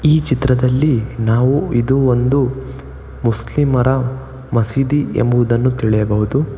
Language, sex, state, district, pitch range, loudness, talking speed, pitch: Kannada, male, Karnataka, Bangalore, 115-135 Hz, -16 LUFS, 80 wpm, 125 Hz